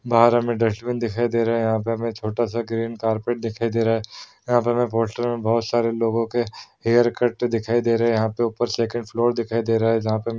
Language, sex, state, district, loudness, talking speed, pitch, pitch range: Hindi, male, Uttar Pradesh, Varanasi, -22 LUFS, 255 wpm, 115 Hz, 115-120 Hz